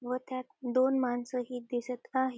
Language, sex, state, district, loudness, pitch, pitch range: Marathi, female, Maharashtra, Dhule, -33 LUFS, 250 Hz, 245-255 Hz